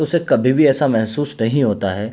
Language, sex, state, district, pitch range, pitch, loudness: Hindi, male, Uttar Pradesh, Hamirpur, 110-145 Hz, 130 Hz, -17 LUFS